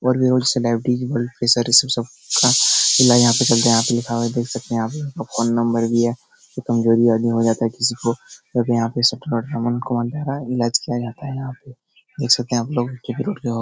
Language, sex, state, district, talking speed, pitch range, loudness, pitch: Hindi, male, Bihar, Jahanabad, 200 wpm, 115-125 Hz, -18 LUFS, 120 Hz